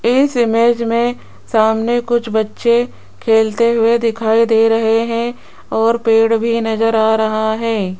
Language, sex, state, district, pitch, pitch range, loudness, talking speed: Hindi, female, Rajasthan, Jaipur, 230 Hz, 220-235 Hz, -15 LUFS, 145 wpm